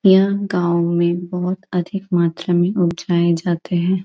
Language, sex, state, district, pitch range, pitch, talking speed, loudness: Hindi, female, Bihar, Gaya, 170-185 Hz, 175 Hz, 150 wpm, -18 LUFS